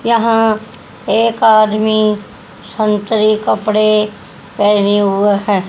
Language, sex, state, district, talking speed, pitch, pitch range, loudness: Hindi, female, Haryana, Rohtak, 85 wpm, 215 Hz, 205-220 Hz, -13 LUFS